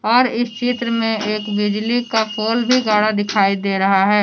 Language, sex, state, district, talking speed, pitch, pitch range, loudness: Hindi, female, Jharkhand, Deoghar, 200 wpm, 215 Hz, 205-235 Hz, -17 LUFS